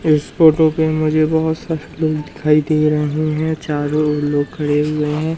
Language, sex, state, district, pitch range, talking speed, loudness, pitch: Hindi, male, Madhya Pradesh, Umaria, 150-160 Hz, 180 wpm, -17 LUFS, 155 Hz